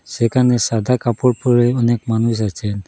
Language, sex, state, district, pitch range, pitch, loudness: Bengali, male, Assam, Hailakandi, 110-125 Hz, 120 Hz, -17 LUFS